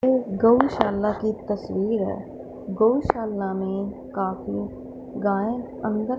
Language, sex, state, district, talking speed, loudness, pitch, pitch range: Hindi, female, Punjab, Fazilka, 95 wpm, -24 LUFS, 215 Hz, 195-235 Hz